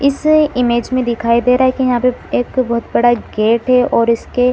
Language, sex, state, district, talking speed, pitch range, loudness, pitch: Hindi, female, Bihar, Supaul, 240 wpm, 235-255 Hz, -14 LUFS, 250 Hz